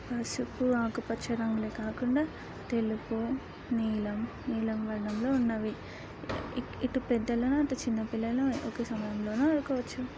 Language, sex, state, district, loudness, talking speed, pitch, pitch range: Telugu, female, Andhra Pradesh, Srikakulam, -32 LUFS, 120 wpm, 235 Hz, 220-255 Hz